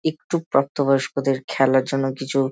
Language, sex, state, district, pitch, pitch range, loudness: Bengali, male, West Bengal, Malda, 135 Hz, 135-140 Hz, -21 LUFS